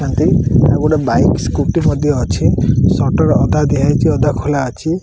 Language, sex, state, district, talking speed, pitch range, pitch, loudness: Odia, male, Odisha, Malkangiri, 155 wpm, 135-160 Hz, 145 Hz, -14 LUFS